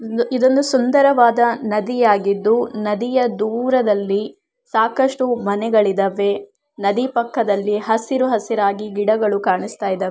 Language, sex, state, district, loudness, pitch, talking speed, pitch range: Kannada, female, Karnataka, Shimoga, -18 LUFS, 225 Hz, 90 wpm, 205-245 Hz